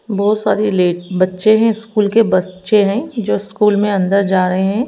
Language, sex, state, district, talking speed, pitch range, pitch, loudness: Hindi, female, Haryana, Rohtak, 195 wpm, 185-215 Hz, 205 Hz, -15 LUFS